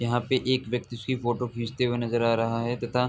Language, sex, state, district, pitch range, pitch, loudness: Hindi, male, Uttar Pradesh, Etah, 120-125 Hz, 120 Hz, -27 LUFS